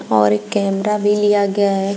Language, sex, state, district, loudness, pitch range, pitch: Hindi, female, Uttar Pradesh, Shamli, -16 LUFS, 195-205 Hz, 200 Hz